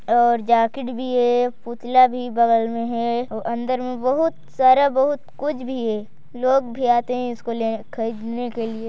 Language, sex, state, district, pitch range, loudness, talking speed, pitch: Hindi, male, Chhattisgarh, Sarguja, 230-255 Hz, -21 LUFS, 180 wpm, 240 Hz